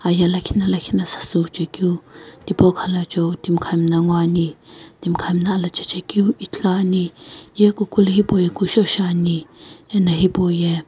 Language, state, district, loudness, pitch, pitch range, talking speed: Sumi, Nagaland, Kohima, -19 LUFS, 175 Hz, 170-190 Hz, 100 wpm